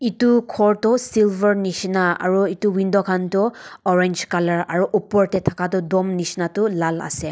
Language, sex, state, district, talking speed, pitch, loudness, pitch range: Nagamese, female, Nagaland, Dimapur, 180 wpm, 190 Hz, -19 LUFS, 180-205 Hz